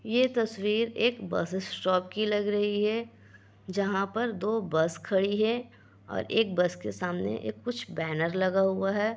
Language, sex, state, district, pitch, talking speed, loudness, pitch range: Hindi, female, Bihar, Kishanganj, 195 Hz, 170 wpm, -29 LUFS, 175-220 Hz